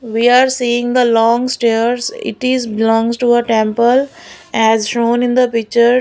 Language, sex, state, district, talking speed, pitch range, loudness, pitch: English, female, Maharashtra, Gondia, 170 wpm, 225-245 Hz, -14 LUFS, 240 Hz